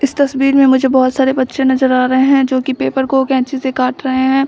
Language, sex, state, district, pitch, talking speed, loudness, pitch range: Hindi, female, Bihar, Samastipur, 265 Hz, 270 wpm, -13 LUFS, 260-270 Hz